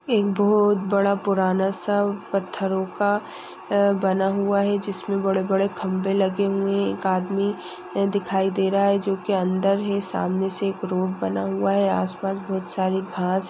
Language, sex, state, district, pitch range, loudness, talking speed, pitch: Hindi, female, Maharashtra, Nagpur, 190-200 Hz, -23 LUFS, 170 wpm, 195 Hz